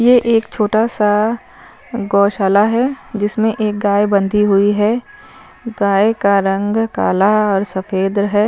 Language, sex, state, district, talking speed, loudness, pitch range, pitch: Hindi, female, Punjab, Fazilka, 135 wpm, -15 LUFS, 200-225 Hz, 210 Hz